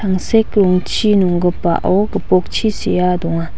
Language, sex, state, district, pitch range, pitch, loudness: Garo, female, Meghalaya, West Garo Hills, 180-205 Hz, 185 Hz, -15 LUFS